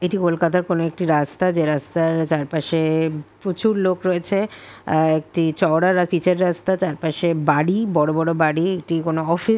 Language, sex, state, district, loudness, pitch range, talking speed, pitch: Bengali, female, West Bengal, Kolkata, -20 LUFS, 160-185 Hz, 165 wpm, 170 Hz